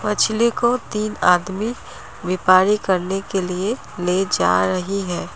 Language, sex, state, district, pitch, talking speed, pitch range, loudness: Hindi, female, Assam, Kamrup Metropolitan, 190 Hz, 135 wpm, 180-215 Hz, -19 LUFS